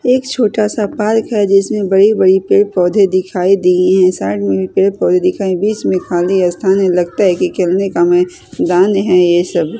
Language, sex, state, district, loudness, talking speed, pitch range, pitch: Hindi, female, Chhattisgarh, Raipur, -13 LUFS, 215 wpm, 180-210 Hz, 190 Hz